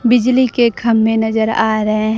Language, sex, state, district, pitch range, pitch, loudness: Hindi, female, Bihar, Kaimur, 220-240 Hz, 225 Hz, -14 LUFS